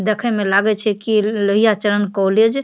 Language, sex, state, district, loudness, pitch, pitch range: Maithili, female, Bihar, Supaul, -16 LUFS, 210 Hz, 205-220 Hz